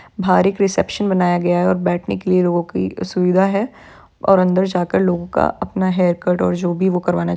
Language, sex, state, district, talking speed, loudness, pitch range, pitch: Hindi, female, Maharashtra, Aurangabad, 230 wpm, -17 LUFS, 175-190 Hz, 180 Hz